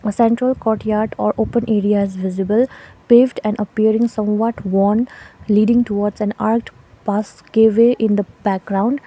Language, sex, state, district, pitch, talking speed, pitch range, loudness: English, female, Sikkim, Gangtok, 215 Hz, 145 wpm, 205-230 Hz, -17 LUFS